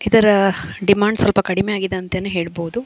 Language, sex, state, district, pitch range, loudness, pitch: Kannada, female, Karnataka, Dakshina Kannada, 185-205 Hz, -18 LUFS, 195 Hz